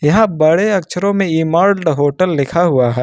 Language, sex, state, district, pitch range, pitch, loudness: Hindi, male, Jharkhand, Ranchi, 150-195 Hz, 170 Hz, -14 LUFS